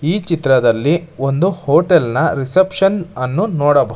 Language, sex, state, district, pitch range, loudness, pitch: Kannada, male, Karnataka, Bangalore, 135-185 Hz, -15 LUFS, 155 Hz